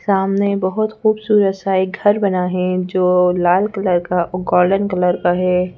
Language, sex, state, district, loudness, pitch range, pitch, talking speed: Hindi, female, Madhya Pradesh, Bhopal, -16 LUFS, 180-200 Hz, 185 Hz, 175 wpm